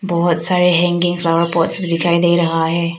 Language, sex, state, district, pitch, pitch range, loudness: Hindi, female, Arunachal Pradesh, Papum Pare, 170 Hz, 165-175 Hz, -15 LUFS